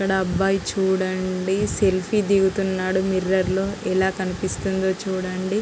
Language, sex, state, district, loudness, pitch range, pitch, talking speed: Telugu, female, Andhra Pradesh, Guntur, -22 LUFS, 185-195 Hz, 190 Hz, 105 wpm